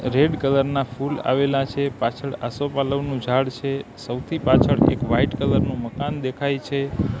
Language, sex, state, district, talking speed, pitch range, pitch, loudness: Gujarati, male, Gujarat, Gandhinagar, 160 wpm, 130-140 Hz, 135 Hz, -22 LUFS